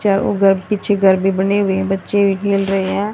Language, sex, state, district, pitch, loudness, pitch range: Hindi, female, Haryana, Rohtak, 195 Hz, -16 LUFS, 195-200 Hz